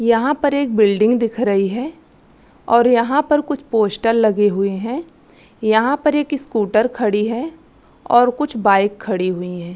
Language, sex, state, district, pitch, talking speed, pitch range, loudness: Hindi, female, Chhattisgarh, Korba, 230 Hz, 165 wpm, 210-280 Hz, -17 LUFS